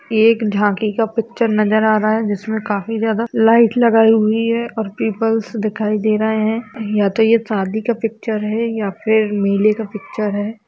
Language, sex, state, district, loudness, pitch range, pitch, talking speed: Hindi, female, Uttar Pradesh, Jalaun, -17 LUFS, 210-225 Hz, 220 Hz, 195 wpm